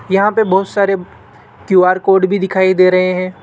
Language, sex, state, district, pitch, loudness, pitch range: Hindi, male, Rajasthan, Jaipur, 190 Hz, -13 LUFS, 185-195 Hz